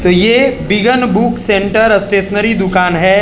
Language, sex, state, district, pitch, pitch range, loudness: Hindi, male, Gujarat, Valsad, 205 Hz, 195-225 Hz, -11 LUFS